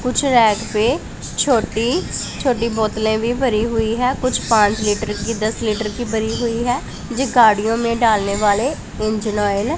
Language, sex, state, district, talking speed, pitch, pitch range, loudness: Hindi, female, Punjab, Pathankot, 170 wpm, 225 Hz, 215-240 Hz, -18 LUFS